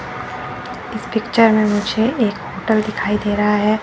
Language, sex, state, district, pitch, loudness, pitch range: Hindi, female, Chandigarh, Chandigarh, 215 Hz, -18 LUFS, 210-225 Hz